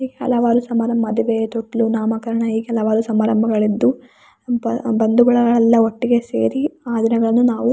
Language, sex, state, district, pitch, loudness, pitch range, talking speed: Kannada, female, Karnataka, Raichur, 230 Hz, -17 LUFS, 225-240 Hz, 140 wpm